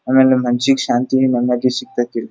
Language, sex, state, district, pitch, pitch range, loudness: Kannada, male, Karnataka, Dharwad, 125 Hz, 120-130 Hz, -16 LUFS